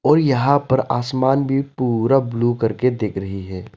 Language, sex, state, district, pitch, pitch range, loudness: Hindi, male, Arunachal Pradesh, Lower Dibang Valley, 125 Hz, 115-135 Hz, -19 LUFS